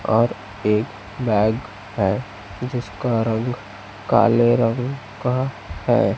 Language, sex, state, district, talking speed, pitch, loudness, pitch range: Hindi, male, Chhattisgarh, Raipur, 95 wpm, 110 Hz, -21 LUFS, 105-120 Hz